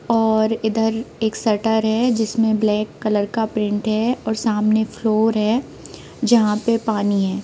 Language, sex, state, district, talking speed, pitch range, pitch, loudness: Hindi, female, Bihar, Gopalganj, 155 wpm, 215-225 Hz, 220 Hz, -19 LUFS